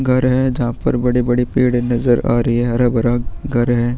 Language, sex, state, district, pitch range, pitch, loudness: Hindi, male, Chhattisgarh, Sukma, 120-125 Hz, 120 Hz, -16 LUFS